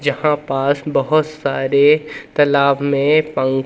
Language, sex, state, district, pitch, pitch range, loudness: Hindi, male, Madhya Pradesh, Umaria, 145 Hz, 140-150 Hz, -16 LUFS